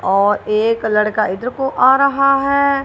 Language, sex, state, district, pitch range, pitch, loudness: Hindi, female, Punjab, Kapurthala, 215-275 Hz, 250 Hz, -15 LUFS